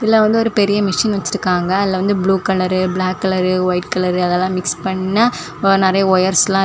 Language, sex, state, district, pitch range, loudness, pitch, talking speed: Tamil, female, Tamil Nadu, Kanyakumari, 185-200 Hz, -16 LUFS, 190 Hz, 180 wpm